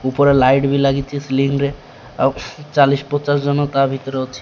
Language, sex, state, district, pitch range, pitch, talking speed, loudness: Odia, male, Odisha, Malkangiri, 135-140 Hz, 140 Hz, 175 wpm, -17 LUFS